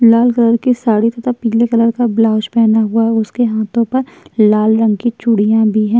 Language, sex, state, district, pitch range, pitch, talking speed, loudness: Hindi, female, Uttar Pradesh, Jyotiba Phule Nagar, 220-235 Hz, 230 Hz, 210 wpm, -13 LUFS